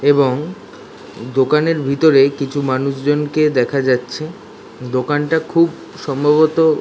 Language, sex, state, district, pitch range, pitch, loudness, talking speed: Bengali, male, West Bengal, Dakshin Dinajpur, 135-155 Hz, 145 Hz, -16 LUFS, 90 wpm